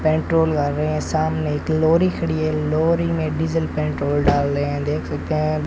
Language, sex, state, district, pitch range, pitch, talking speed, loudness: Hindi, male, Rajasthan, Bikaner, 150-160 Hz, 155 Hz, 200 wpm, -20 LUFS